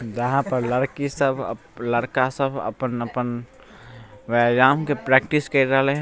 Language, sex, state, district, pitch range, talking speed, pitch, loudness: Maithili, male, Bihar, Begusarai, 120-135 Hz, 130 wpm, 130 Hz, -22 LUFS